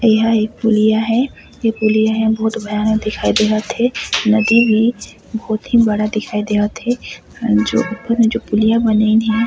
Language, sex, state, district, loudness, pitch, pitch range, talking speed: Chhattisgarhi, female, Chhattisgarh, Sarguja, -16 LUFS, 220 Hz, 215-230 Hz, 175 wpm